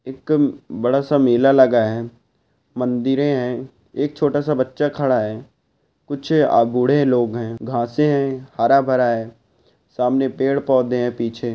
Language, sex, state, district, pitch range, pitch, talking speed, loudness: Hindi, male, Andhra Pradesh, Guntur, 120-140 Hz, 130 Hz, 155 wpm, -18 LUFS